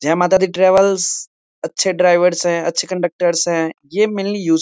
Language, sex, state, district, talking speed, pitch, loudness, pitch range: Hindi, male, Bihar, Muzaffarpur, 180 wpm, 180 Hz, -16 LUFS, 170-190 Hz